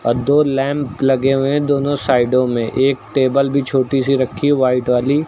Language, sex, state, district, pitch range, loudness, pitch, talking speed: Hindi, male, Uttar Pradesh, Lucknow, 130-140 Hz, -16 LUFS, 135 Hz, 205 wpm